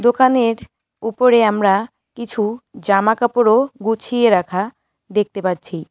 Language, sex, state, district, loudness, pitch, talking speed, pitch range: Bengali, female, West Bengal, Cooch Behar, -17 LUFS, 225 Hz, 90 wpm, 205-240 Hz